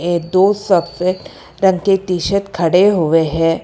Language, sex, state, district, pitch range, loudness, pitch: Hindi, female, Karnataka, Bangalore, 170-195 Hz, -15 LUFS, 185 Hz